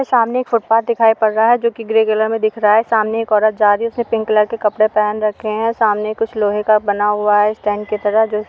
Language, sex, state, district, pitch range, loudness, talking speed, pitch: Hindi, female, Uttar Pradesh, Varanasi, 210-225 Hz, -15 LUFS, 275 wpm, 215 Hz